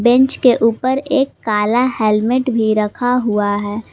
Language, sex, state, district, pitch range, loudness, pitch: Hindi, female, Jharkhand, Palamu, 215-250 Hz, -15 LUFS, 240 Hz